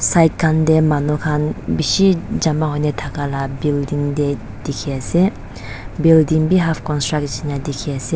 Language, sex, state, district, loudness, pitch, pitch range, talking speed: Nagamese, female, Nagaland, Dimapur, -18 LUFS, 150 Hz, 140-160 Hz, 145 wpm